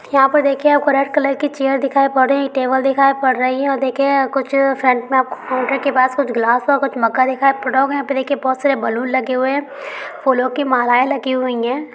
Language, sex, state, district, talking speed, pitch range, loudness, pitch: Hindi, female, Chhattisgarh, Raigarh, 245 wpm, 255-275 Hz, -16 LUFS, 270 Hz